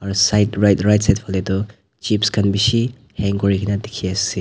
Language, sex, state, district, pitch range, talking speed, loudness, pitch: Nagamese, male, Nagaland, Dimapur, 100-105 Hz, 190 wpm, -18 LUFS, 100 Hz